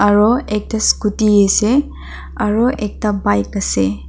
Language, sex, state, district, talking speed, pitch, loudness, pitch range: Nagamese, female, Nagaland, Dimapur, 115 wpm, 210 Hz, -15 LUFS, 200-220 Hz